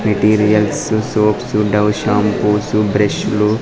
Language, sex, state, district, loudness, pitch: Telugu, male, Andhra Pradesh, Sri Satya Sai, -15 LUFS, 105 Hz